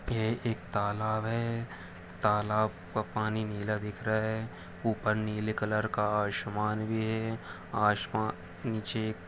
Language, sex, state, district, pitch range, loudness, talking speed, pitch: Hindi, male, Jharkhand, Jamtara, 105-110 Hz, -32 LUFS, 140 wpm, 110 Hz